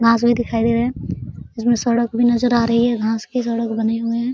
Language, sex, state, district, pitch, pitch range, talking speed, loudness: Hindi, female, Bihar, Araria, 235 Hz, 230-240 Hz, 305 wpm, -18 LUFS